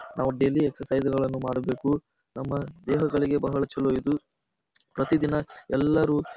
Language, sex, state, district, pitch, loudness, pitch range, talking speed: Kannada, male, Karnataka, Bijapur, 140 Hz, -27 LUFS, 135-150 Hz, 105 wpm